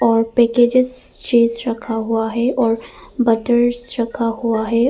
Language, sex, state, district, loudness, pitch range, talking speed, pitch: Hindi, female, Arunachal Pradesh, Papum Pare, -15 LUFS, 230-240 Hz, 135 wpm, 235 Hz